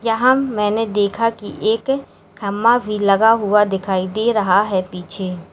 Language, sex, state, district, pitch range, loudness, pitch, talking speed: Hindi, female, Uttar Pradesh, Lalitpur, 195-230 Hz, -17 LUFS, 210 Hz, 150 wpm